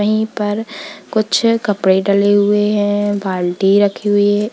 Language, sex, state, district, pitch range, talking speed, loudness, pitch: Hindi, female, Uttar Pradesh, Lalitpur, 200-215 Hz, 145 wpm, -15 LUFS, 205 Hz